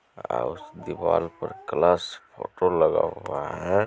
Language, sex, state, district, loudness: Maithili, male, Bihar, Supaul, -25 LUFS